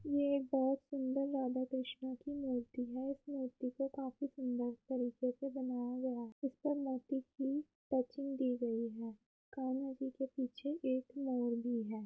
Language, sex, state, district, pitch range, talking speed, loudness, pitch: Hindi, female, Uttar Pradesh, Muzaffarnagar, 250-275 Hz, 170 wpm, -40 LUFS, 260 Hz